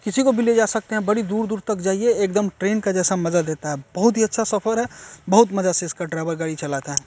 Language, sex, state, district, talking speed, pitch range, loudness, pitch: Hindi, male, Bihar, Saran, 265 wpm, 170-220 Hz, -21 LUFS, 200 Hz